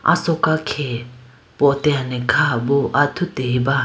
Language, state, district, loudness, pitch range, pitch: Idu Mishmi, Arunachal Pradesh, Lower Dibang Valley, -19 LUFS, 125-145 Hz, 140 Hz